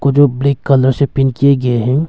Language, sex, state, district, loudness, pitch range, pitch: Hindi, male, Arunachal Pradesh, Longding, -13 LUFS, 130-140 Hz, 140 Hz